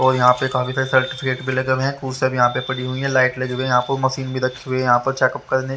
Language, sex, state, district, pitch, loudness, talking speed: Hindi, male, Haryana, Rohtak, 130 Hz, -19 LUFS, 355 wpm